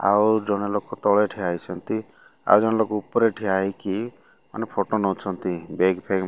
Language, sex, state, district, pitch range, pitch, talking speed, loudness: Odia, male, Odisha, Malkangiri, 95-110 Hz, 100 Hz, 170 wpm, -23 LUFS